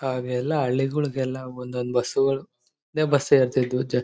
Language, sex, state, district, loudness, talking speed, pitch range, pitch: Kannada, male, Karnataka, Bellary, -24 LUFS, 120 wpm, 125-140 Hz, 130 Hz